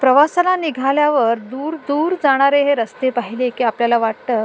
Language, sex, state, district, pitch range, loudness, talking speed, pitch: Marathi, female, Maharashtra, Sindhudurg, 235-295 Hz, -17 LUFS, 160 wpm, 270 Hz